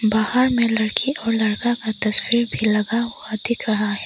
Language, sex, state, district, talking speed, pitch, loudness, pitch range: Hindi, female, Arunachal Pradesh, Papum Pare, 190 wpm, 220 Hz, -20 LUFS, 215-235 Hz